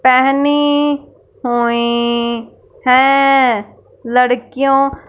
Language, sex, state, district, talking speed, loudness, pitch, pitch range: Hindi, female, Punjab, Fazilka, 45 wpm, -14 LUFS, 255 Hz, 235-275 Hz